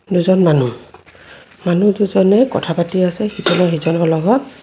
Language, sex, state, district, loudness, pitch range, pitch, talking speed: Assamese, female, Assam, Kamrup Metropolitan, -15 LUFS, 170-205 Hz, 180 Hz, 130 wpm